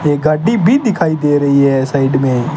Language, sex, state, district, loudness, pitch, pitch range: Hindi, male, Rajasthan, Bikaner, -13 LUFS, 145 Hz, 135-165 Hz